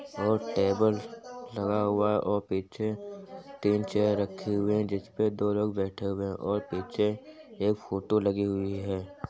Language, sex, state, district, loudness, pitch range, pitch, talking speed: Hindi, male, Uttar Pradesh, Jyotiba Phule Nagar, -29 LUFS, 100-110 Hz, 105 Hz, 170 wpm